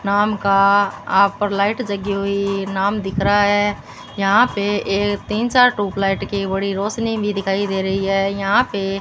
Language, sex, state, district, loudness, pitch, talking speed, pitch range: Hindi, female, Rajasthan, Bikaner, -18 LUFS, 200 Hz, 180 wpm, 195-205 Hz